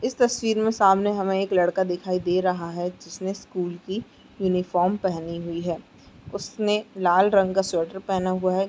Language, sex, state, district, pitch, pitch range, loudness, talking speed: Hindi, female, Bihar, Araria, 185 Hz, 175-195 Hz, -24 LUFS, 180 wpm